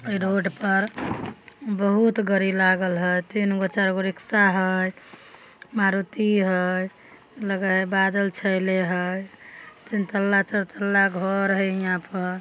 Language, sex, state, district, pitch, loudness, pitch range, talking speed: Maithili, female, Bihar, Samastipur, 195 Hz, -23 LUFS, 185-200 Hz, 125 wpm